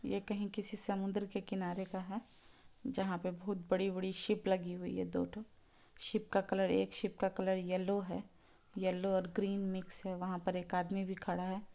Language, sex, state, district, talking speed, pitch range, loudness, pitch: Hindi, female, Bihar, Gopalganj, 200 wpm, 185-200 Hz, -38 LUFS, 190 Hz